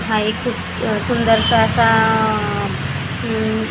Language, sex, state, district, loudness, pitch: Marathi, female, Maharashtra, Gondia, -17 LUFS, 215 Hz